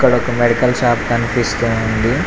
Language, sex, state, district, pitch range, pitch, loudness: Telugu, male, Telangana, Mahabubabad, 115-120 Hz, 120 Hz, -16 LUFS